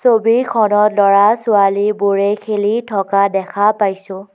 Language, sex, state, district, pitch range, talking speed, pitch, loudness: Assamese, female, Assam, Kamrup Metropolitan, 200-215 Hz, 95 wpm, 205 Hz, -14 LUFS